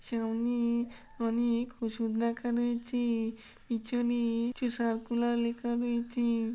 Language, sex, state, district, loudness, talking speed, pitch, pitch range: Bengali, female, West Bengal, Jhargram, -32 LUFS, 90 wpm, 235 Hz, 230-240 Hz